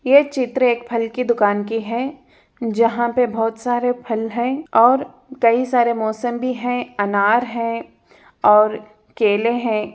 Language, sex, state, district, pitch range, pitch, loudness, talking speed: Hindi, female, Chhattisgarh, Jashpur, 225-250 Hz, 235 Hz, -19 LUFS, 145 wpm